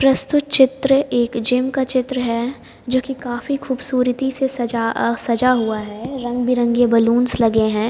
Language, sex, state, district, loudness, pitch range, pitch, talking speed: Hindi, female, Haryana, Jhajjar, -18 LUFS, 235-265 Hz, 250 Hz, 160 wpm